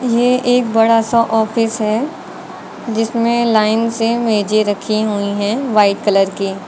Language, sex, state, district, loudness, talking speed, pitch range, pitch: Hindi, female, Uttar Pradesh, Lucknow, -15 LUFS, 145 wpm, 210-235 Hz, 225 Hz